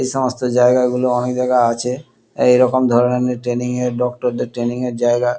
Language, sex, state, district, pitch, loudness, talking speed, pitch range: Bengali, male, West Bengal, Kolkata, 125 Hz, -17 LUFS, 180 wpm, 120-125 Hz